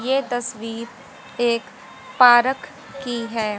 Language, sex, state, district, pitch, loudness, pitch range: Hindi, female, Haryana, Jhajjar, 240 Hz, -20 LUFS, 230-260 Hz